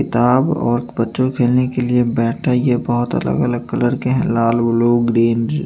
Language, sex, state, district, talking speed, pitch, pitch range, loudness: Hindi, male, Chandigarh, Chandigarh, 190 wpm, 120 Hz, 120-125 Hz, -16 LUFS